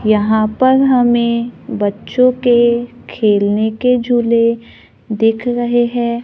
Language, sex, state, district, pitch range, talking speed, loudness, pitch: Hindi, female, Maharashtra, Gondia, 220-245 Hz, 105 wpm, -14 LUFS, 235 Hz